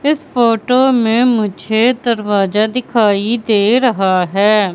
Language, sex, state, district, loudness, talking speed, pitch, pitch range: Hindi, female, Madhya Pradesh, Katni, -13 LUFS, 115 wpm, 225 Hz, 205-245 Hz